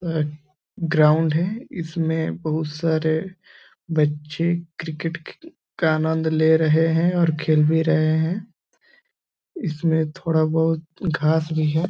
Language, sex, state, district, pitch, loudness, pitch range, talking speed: Hindi, male, Bihar, East Champaran, 160 Hz, -21 LUFS, 155-170 Hz, 120 wpm